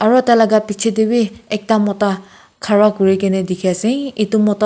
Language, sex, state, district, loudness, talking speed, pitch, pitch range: Nagamese, female, Nagaland, Kohima, -15 LUFS, 165 wpm, 210 Hz, 200-225 Hz